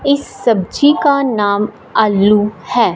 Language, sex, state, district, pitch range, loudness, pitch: Hindi, female, Punjab, Fazilka, 205-280 Hz, -14 LUFS, 220 Hz